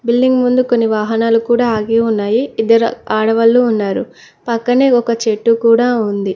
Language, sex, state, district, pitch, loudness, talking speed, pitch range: Telugu, female, Telangana, Mahabubabad, 230 Hz, -13 LUFS, 140 wpm, 225-240 Hz